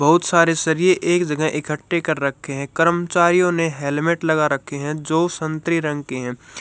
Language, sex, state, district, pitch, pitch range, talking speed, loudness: Hindi, male, Maharashtra, Gondia, 160 Hz, 150-170 Hz, 180 wpm, -19 LUFS